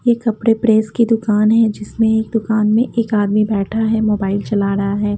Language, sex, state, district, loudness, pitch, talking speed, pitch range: Hindi, female, Haryana, Jhajjar, -16 LUFS, 220 Hz, 195 wpm, 210-225 Hz